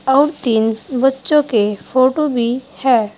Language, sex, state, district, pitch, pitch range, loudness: Hindi, female, Uttar Pradesh, Saharanpur, 255 Hz, 225-270 Hz, -16 LUFS